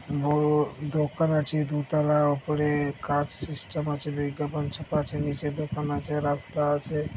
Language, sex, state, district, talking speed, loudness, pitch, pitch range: Bengali, male, West Bengal, Malda, 140 wpm, -27 LUFS, 150 Hz, 145-150 Hz